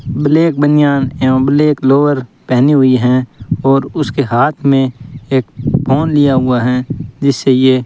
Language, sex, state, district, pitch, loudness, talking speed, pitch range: Hindi, male, Rajasthan, Bikaner, 135 Hz, -12 LUFS, 150 wpm, 130-145 Hz